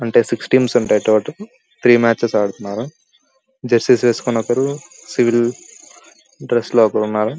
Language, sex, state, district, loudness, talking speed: Telugu, female, Andhra Pradesh, Anantapur, -16 LUFS, 140 wpm